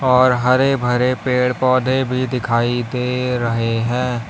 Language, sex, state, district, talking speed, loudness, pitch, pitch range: Hindi, male, Uttar Pradesh, Lalitpur, 140 wpm, -17 LUFS, 125 Hz, 120-130 Hz